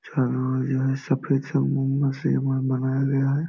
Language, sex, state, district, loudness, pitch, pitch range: Hindi, male, Bihar, Jamui, -24 LUFS, 135 Hz, 130-140 Hz